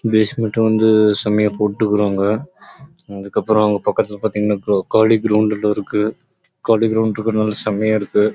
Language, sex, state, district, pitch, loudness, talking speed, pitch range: Tamil, male, Karnataka, Chamarajanagar, 105 Hz, -17 LUFS, 50 wpm, 105-110 Hz